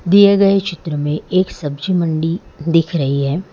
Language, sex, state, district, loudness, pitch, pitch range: Hindi, male, Gujarat, Valsad, -16 LUFS, 165 Hz, 150-185 Hz